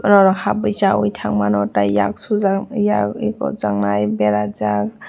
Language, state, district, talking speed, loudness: Kokborok, Tripura, West Tripura, 155 wpm, -18 LUFS